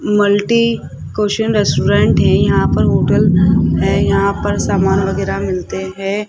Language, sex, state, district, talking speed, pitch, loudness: Hindi, male, Rajasthan, Jaipur, 135 wpm, 205 Hz, -14 LUFS